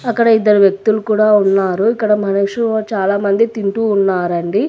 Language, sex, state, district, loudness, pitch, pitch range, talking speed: Telugu, female, Telangana, Hyderabad, -14 LUFS, 210 Hz, 195-220 Hz, 130 wpm